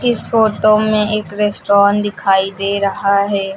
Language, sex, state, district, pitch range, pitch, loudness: Hindi, female, Uttar Pradesh, Lucknow, 200-215 Hz, 205 Hz, -14 LUFS